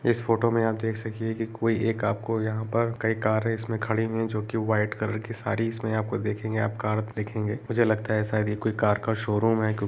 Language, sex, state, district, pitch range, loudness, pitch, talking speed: Hindi, male, Uttar Pradesh, Etah, 110-115 Hz, -27 LUFS, 110 Hz, 275 wpm